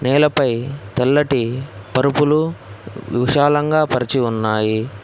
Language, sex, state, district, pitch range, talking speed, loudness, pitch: Telugu, male, Telangana, Hyderabad, 110-145 Hz, 70 wpm, -17 LUFS, 130 Hz